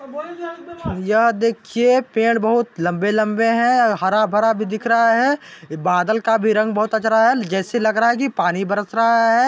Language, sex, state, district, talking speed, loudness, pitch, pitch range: Chhattisgarhi, male, Chhattisgarh, Balrampur, 190 wpm, -18 LUFS, 225 Hz, 215-235 Hz